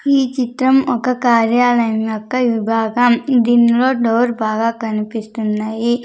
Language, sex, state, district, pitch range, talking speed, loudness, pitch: Telugu, female, Andhra Pradesh, Sri Satya Sai, 225-250 Hz, 100 wpm, -16 LUFS, 235 Hz